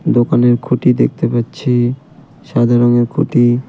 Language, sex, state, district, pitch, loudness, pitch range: Bengali, male, West Bengal, Cooch Behar, 120 Hz, -14 LUFS, 120-135 Hz